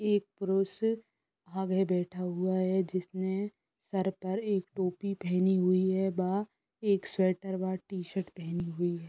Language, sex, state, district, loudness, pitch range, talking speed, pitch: Bhojpuri, female, Bihar, Saran, -32 LUFS, 185-195 Hz, 145 wpm, 190 Hz